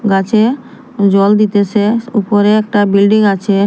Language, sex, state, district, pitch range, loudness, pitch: Bengali, female, Assam, Hailakandi, 200-215 Hz, -11 LUFS, 205 Hz